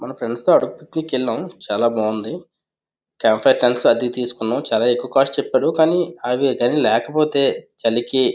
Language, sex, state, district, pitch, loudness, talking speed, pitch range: Telugu, male, Andhra Pradesh, Visakhapatnam, 125 Hz, -18 LUFS, 150 wpm, 120-140 Hz